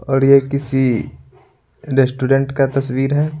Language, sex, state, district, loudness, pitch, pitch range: Hindi, male, Bihar, Patna, -16 LUFS, 135 Hz, 135-140 Hz